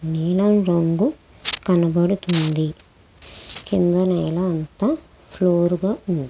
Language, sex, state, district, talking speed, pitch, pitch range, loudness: Telugu, female, Andhra Pradesh, Krishna, 85 wpm, 175 Hz, 155-185 Hz, -20 LUFS